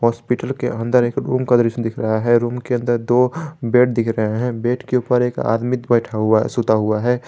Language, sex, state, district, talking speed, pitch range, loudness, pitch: Hindi, male, Jharkhand, Garhwa, 230 wpm, 115-125 Hz, -18 LUFS, 120 Hz